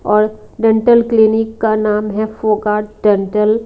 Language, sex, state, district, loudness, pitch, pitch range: Hindi, female, Haryana, Rohtak, -14 LUFS, 215 Hz, 210-220 Hz